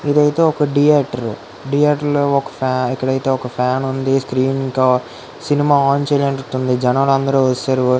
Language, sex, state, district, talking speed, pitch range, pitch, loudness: Telugu, female, Andhra Pradesh, Guntur, 125 wpm, 130-145 Hz, 135 Hz, -16 LUFS